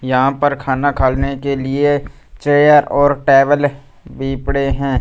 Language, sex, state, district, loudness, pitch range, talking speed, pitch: Hindi, male, Punjab, Fazilka, -15 LUFS, 135-145 Hz, 145 wpm, 140 Hz